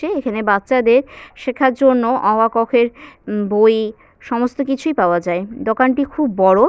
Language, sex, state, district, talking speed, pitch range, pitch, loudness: Bengali, female, West Bengal, Purulia, 150 wpm, 215-265 Hz, 240 Hz, -16 LUFS